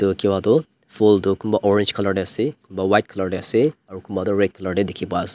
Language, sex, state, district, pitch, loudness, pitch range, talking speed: Nagamese, male, Nagaland, Dimapur, 95 Hz, -20 LUFS, 95-100 Hz, 270 wpm